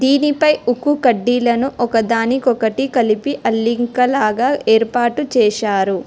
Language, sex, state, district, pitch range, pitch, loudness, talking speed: Telugu, female, Telangana, Hyderabad, 225-265 Hz, 240 Hz, -16 LUFS, 90 wpm